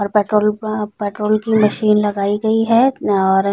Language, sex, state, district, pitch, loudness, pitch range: Hindi, female, Chhattisgarh, Balrampur, 210 Hz, -16 LUFS, 205-215 Hz